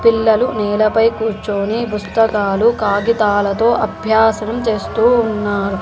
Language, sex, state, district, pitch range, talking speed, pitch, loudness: Telugu, female, Telangana, Hyderabad, 210-225 Hz, 95 wpm, 220 Hz, -15 LUFS